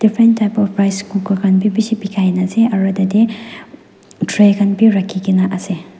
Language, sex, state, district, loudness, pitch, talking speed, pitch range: Nagamese, female, Nagaland, Dimapur, -15 LUFS, 200 Hz, 160 wpm, 195-220 Hz